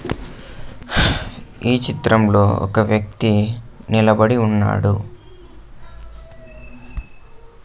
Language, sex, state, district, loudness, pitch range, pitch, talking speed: Telugu, male, Andhra Pradesh, Sri Satya Sai, -17 LUFS, 105-120 Hz, 110 Hz, 55 wpm